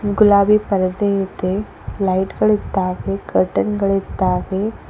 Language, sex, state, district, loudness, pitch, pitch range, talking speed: Kannada, female, Karnataka, Koppal, -18 LUFS, 195 Hz, 190-205 Hz, 85 wpm